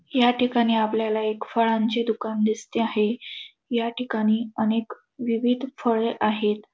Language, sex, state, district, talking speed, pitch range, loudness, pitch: Marathi, female, Maharashtra, Dhule, 125 wpm, 220-235 Hz, -24 LUFS, 225 Hz